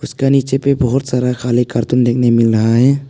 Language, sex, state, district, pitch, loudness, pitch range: Hindi, male, Arunachal Pradesh, Papum Pare, 125 Hz, -14 LUFS, 120-135 Hz